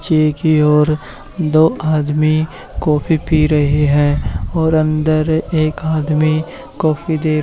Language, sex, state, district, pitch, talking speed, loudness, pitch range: Hindi, male, Haryana, Charkhi Dadri, 155 Hz, 120 wpm, -15 LUFS, 150-160 Hz